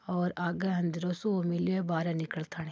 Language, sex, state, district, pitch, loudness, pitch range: Marwari, female, Rajasthan, Churu, 175 Hz, -32 LUFS, 165-180 Hz